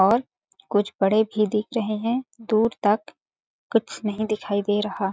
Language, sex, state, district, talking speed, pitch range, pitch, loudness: Hindi, female, Chhattisgarh, Balrampur, 165 wpm, 205-225 Hz, 215 Hz, -24 LUFS